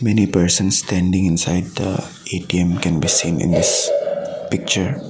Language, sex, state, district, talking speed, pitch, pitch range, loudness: English, male, Assam, Sonitpur, 140 wpm, 95 Hz, 90-140 Hz, -18 LUFS